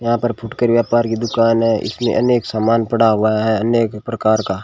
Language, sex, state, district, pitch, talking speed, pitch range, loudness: Hindi, male, Rajasthan, Bikaner, 115 Hz, 205 wpm, 110-120 Hz, -16 LUFS